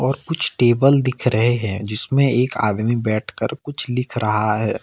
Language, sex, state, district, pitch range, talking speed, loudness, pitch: Hindi, male, Jharkhand, Ranchi, 110-130 Hz, 175 wpm, -19 LUFS, 120 Hz